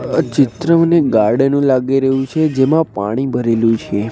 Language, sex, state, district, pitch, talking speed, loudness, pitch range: Gujarati, male, Gujarat, Gandhinagar, 135 Hz, 175 wpm, -14 LUFS, 115-155 Hz